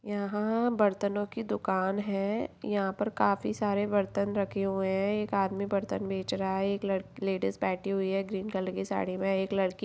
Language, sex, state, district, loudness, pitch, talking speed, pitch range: Hindi, female, Bihar, Samastipur, -31 LUFS, 200 Hz, 200 wpm, 190-205 Hz